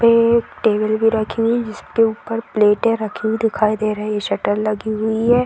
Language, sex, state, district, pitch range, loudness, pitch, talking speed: Hindi, female, Bihar, Madhepura, 215-230 Hz, -18 LUFS, 220 Hz, 200 wpm